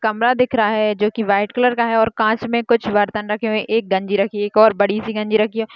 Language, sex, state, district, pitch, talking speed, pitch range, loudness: Hindi, female, Bihar, Madhepura, 215 Hz, 290 wpm, 210-225 Hz, -17 LUFS